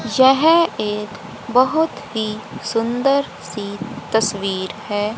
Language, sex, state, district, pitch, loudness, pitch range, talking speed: Hindi, female, Haryana, Rohtak, 220 Hz, -19 LUFS, 210-260 Hz, 95 wpm